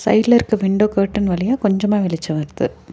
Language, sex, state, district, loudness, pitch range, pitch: Tamil, female, Tamil Nadu, Nilgiris, -17 LUFS, 195-215 Hz, 205 Hz